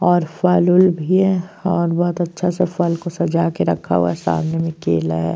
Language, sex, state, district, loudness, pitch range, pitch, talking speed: Hindi, female, Uttar Pradesh, Jyotiba Phule Nagar, -18 LUFS, 160-180 Hz, 175 Hz, 225 wpm